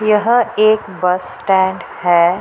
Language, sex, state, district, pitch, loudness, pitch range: Hindi, female, Bihar, Purnia, 190 Hz, -15 LUFS, 180-215 Hz